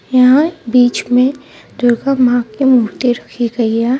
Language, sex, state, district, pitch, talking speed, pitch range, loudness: Hindi, female, Jharkhand, Ranchi, 245 Hz, 150 wpm, 240-260 Hz, -13 LUFS